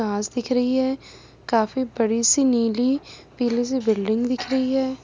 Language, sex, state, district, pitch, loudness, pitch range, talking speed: Hindi, female, Chhattisgarh, Kabirdham, 245 Hz, -22 LUFS, 230-260 Hz, 165 wpm